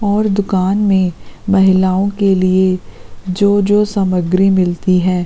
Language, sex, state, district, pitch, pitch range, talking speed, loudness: Hindi, female, Uttarakhand, Uttarkashi, 190 Hz, 185-200 Hz, 115 wpm, -14 LUFS